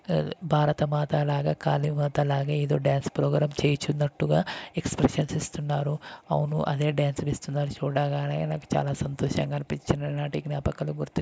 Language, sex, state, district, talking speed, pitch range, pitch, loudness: Telugu, male, Karnataka, Raichur, 130 wpm, 90-150 Hz, 145 Hz, -27 LUFS